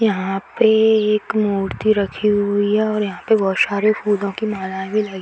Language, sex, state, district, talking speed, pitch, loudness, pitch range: Hindi, female, Bihar, Darbhanga, 205 wpm, 205 Hz, -18 LUFS, 195-215 Hz